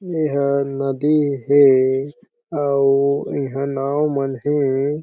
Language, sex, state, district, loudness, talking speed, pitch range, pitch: Chhattisgarhi, male, Chhattisgarh, Jashpur, -18 LUFS, 95 wpm, 135-145 Hz, 140 Hz